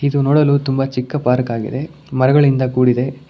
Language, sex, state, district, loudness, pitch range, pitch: Kannada, male, Karnataka, Bangalore, -16 LUFS, 125-140 Hz, 135 Hz